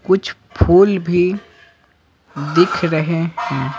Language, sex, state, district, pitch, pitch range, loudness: Hindi, male, Bihar, Patna, 175 Hz, 155-190 Hz, -16 LUFS